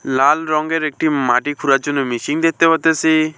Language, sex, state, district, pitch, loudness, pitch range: Bengali, male, West Bengal, Alipurduar, 155 Hz, -16 LUFS, 140-160 Hz